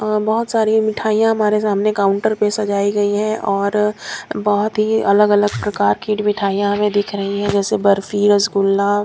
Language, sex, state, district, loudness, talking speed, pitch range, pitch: Hindi, female, Punjab, Kapurthala, -17 LUFS, 160 wpm, 200-215 Hz, 205 Hz